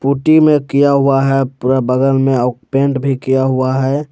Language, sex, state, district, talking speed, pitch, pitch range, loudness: Hindi, male, Jharkhand, Palamu, 205 wpm, 135 Hz, 130-140 Hz, -13 LUFS